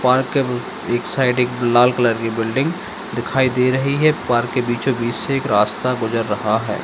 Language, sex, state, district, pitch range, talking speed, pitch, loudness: Hindi, male, Bihar, Madhepura, 115-130 Hz, 195 wpm, 125 Hz, -18 LUFS